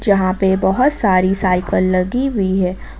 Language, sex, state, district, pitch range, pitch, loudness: Hindi, female, Jharkhand, Ranchi, 185-200 Hz, 190 Hz, -16 LUFS